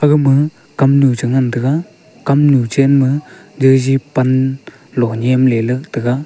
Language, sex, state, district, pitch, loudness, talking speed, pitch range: Wancho, male, Arunachal Pradesh, Longding, 135 Hz, -14 LUFS, 115 wpm, 125-140 Hz